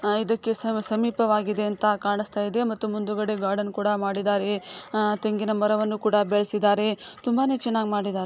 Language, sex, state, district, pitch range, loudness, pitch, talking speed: Kannada, female, Karnataka, Dakshina Kannada, 205-215 Hz, -25 LUFS, 210 Hz, 140 wpm